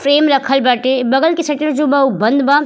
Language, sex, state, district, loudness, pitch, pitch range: Bhojpuri, female, Uttar Pradesh, Ghazipur, -13 LUFS, 280 Hz, 265-295 Hz